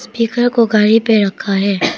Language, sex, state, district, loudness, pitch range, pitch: Hindi, female, Arunachal Pradesh, Papum Pare, -13 LUFS, 200-235 Hz, 220 Hz